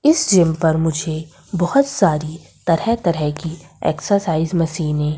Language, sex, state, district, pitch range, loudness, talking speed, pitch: Hindi, female, Madhya Pradesh, Umaria, 155-190 Hz, -18 LUFS, 140 wpm, 165 Hz